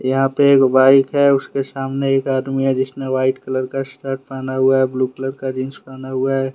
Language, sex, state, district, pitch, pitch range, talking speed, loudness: Hindi, male, Jharkhand, Deoghar, 135 Hz, 130-135 Hz, 230 wpm, -17 LUFS